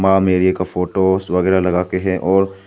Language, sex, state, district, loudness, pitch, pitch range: Hindi, male, Arunachal Pradesh, Papum Pare, -16 LUFS, 95 Hz, 90-95 Hz